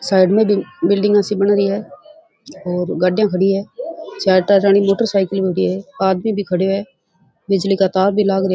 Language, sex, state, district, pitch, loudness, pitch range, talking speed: Rajasthani, female, Rajasthan, Churu, 195 Hz, -16 LUFS, 190-205 Hz, 205 wpm